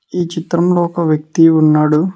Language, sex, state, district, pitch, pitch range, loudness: Telugu, male, Telangana, Mahabubabad, 165 Hz, 155-175 Hz, -13 LUFS